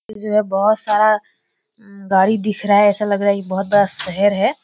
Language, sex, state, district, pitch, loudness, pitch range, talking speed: Hindi, female, Bihar, Kishanganj, 205 Hz, -16 LUFS, 195-210 Hz, 235 wpm